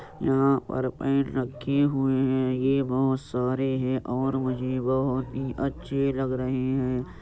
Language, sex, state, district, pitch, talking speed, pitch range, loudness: Hindi, male, Uttar Pradesh, Jyotiba Phule Nagar, 130 Hz, 160 wpm, 130-135 Hz, -26 LUFS